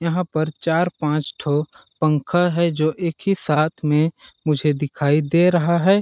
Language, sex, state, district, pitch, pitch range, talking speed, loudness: Hindi, male, Chhattisgarh, Balrampur, 155 Hz, 150-170 Hz, 170 wpm, -20 LUFS